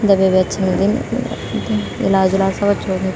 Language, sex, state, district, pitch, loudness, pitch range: Garhwali, female, Uttarakhand, Tehri Garhwal, 190 Hz, -17 LUFS, 190-200 Hz